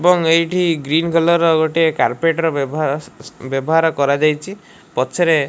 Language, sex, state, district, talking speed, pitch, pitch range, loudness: Odia, male, Odisha, Malkangiri, 100 wpm, 165 Hz, 150-170 Hz, -16 LUFS